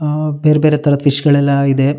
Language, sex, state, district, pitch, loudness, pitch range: Kannada, male, Karnataka, Shimoga, 145 Hz, -13 LUFS, 140-150 Hz